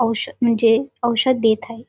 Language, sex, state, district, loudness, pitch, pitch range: Marathi, female, Maharashtra, Sindhudurg, -18 LUFS, 230 Hz, 225-240 Hz